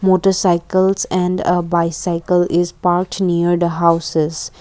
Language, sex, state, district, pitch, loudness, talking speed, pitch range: English, female, Assam, Kamrup Metropolitan, 175 Hz, -16 LUFS, 115 wpm, 170-180 Hz